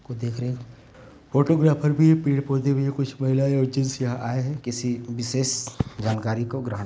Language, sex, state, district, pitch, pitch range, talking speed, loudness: Hindi, male, Uttar Pradesh, Varanasi, 130 Hz, 120-140 Hz, 185 wpm, -24 LUFS